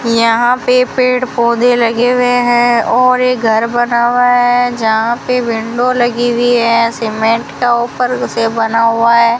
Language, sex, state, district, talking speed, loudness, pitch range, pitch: Hindi, female, Rajasthan, Bikaner, 165 wpm, -12 LUFS, 230-245 Hz, 240 Hz